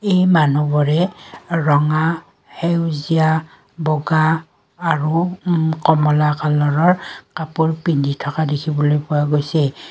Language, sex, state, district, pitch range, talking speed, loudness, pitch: Assamese, female, Assam, Kamrup Metropolitan, 150-165 Hz, 90 wpm, -18 LUFS, 155 Hz